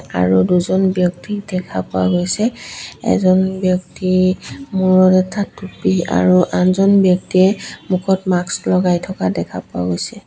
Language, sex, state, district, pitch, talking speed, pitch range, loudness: Assamese, female, Assam, Sonitpur, 185 Hz, 125 wpm, 175-190 Hz, -16 LUFS